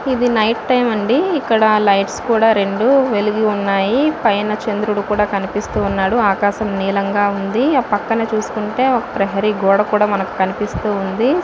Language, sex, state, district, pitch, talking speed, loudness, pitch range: Telugu, female, Andhra Pradesh, Visakhapatnam, 210 Hz, 125 wpm, -16 LUFS, 200-230 Hz